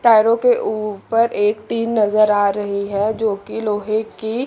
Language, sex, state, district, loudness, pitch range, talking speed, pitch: Hindi, female, Chandigarh, Chandigarh, -18 LUFS, 205-225 Hz, 175 wpm, 215 Hz